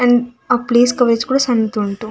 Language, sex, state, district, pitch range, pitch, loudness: Kannada, female, Karnataka, Dakshina Kannada, 225-245 Hz, 245 Hz, -15 LUFS